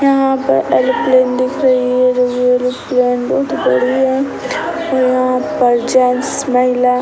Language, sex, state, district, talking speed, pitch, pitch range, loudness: Hindi, male, Bihar, Sitamarhi, 155 wpm, 250 Hz, 250-255 Hz, -14 LUFS